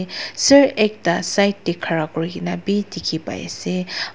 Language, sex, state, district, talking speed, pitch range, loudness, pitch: Nagamese, female, Nagaland, Dimapur, 115 wpm, 135-200 Hz, -19 LUFS, 170 Hz